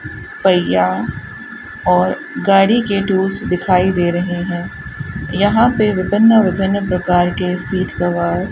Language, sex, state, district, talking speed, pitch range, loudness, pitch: Hindi, female, Rajasthan, Bikaner, 125 wpm, 175-195 Hz, -15 LUFS, 185 Hz